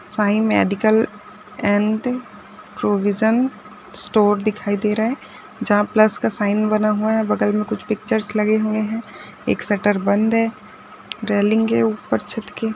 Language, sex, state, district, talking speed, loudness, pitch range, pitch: Hindi, female, Rajasthan, Nagaur, 150 wpm, -19 LUFS, 210-220 Hz, 215 Hz